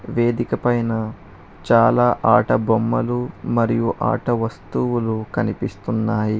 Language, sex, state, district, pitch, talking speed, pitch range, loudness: Telugu, male, Telangana, Hyderabad, 115 Hz, 85 wpm, 110-120 Hz, -20 LUFS